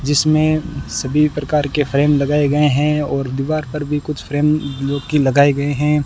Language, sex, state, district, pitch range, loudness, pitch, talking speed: Hindi, male, Rajasthan, Bikaner, 140-150 Hz, -17 LUFS, 145 Hz, 190 wpm